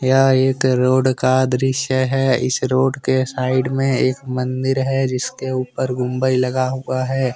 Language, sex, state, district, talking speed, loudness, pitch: Hindi, male, Jharkhand, Deoghar, 170 wpm, -18 LUFS, 130 Hz